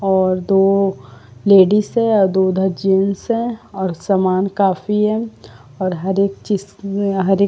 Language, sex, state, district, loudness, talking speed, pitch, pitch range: Hindi, female, Uttar Pradesh, Varanasi, -17 LUFS, 135 wpm, 195 Hz, 185-200 Hz